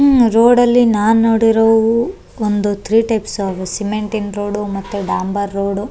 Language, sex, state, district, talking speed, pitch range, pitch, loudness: Kannada, female, Karnataka, Raichur, 140 wpm, 205-225 Hz, 215 Hz, -15 LUFS